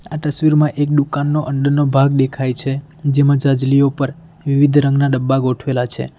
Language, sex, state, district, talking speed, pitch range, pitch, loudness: Gujarati, male, Gujarat, Valsad, 145 wpm, 135-145 Hz, 140 Hz, -16 LUFS